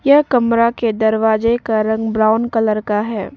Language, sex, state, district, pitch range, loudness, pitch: Hindi, female, Arunachal Pradesh, Papum Pare, 220-235 Hz, -16 LUFS, 220 Hz